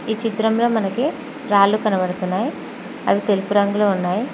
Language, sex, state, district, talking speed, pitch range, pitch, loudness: Telugu, female, Telangana, Mahabubabad, 125 wpm, 200-225 Hz, 210 Hz, -19 LUFS